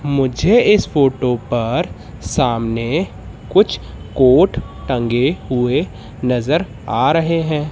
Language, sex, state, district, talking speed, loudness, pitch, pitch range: Hindi, male, Madhya Pradesh, Katni, 100 wpm, -16 LUFS, 135 Hz, 120-160 Hz